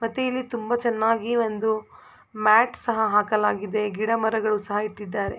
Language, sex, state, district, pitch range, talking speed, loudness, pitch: Kannada, female, Karnataka, Mysore, 210-230 Hz, 135 wpm, -24 LUFS, 220 Hz